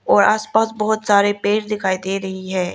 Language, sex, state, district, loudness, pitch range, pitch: Hindi, female, Arunachal Pradesh, Lower Dibang Valley, -18 LUFS, 190-215 Hz, 205 Hz